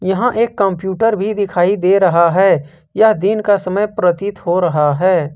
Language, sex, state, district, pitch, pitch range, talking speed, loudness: Hindi, male, Jharkhand, Ranchi, 190 Hz, 175-205 Hz, 180 wpm, -14 LUFS